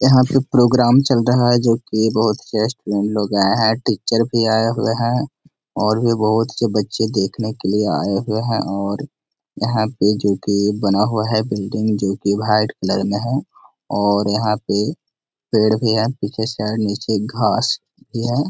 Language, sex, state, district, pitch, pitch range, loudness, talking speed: Hindi, male, Bihar, Gaya, 110 Hz, 105-115 Hz, -18 LUFS, 180 wpm